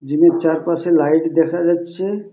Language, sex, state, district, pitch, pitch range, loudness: Bengali, male, West Bengal, Purulia, 170 Hz, 160-170 Hz, -17 LUFS